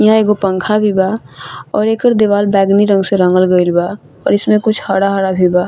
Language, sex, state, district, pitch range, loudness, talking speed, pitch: Bhojpuri, female, Bihar, Saran, 185-210 Hz, -13 LUFS, 210 wpm, 200 Hz